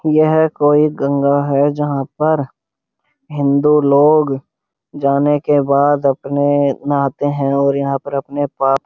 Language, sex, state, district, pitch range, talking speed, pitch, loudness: Hindi, male, Uttar Pradesh, Jyotiba Phule Nagar, 140-145 Hz, 135 wpm, 140 Hz, -15 LUFS